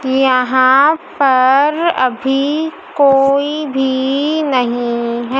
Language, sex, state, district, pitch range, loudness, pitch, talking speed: Hindi, female, Madhya Pradesh, Dhar, 255-295 Hz, -13 LUFS, 270 Hz, 80 wpm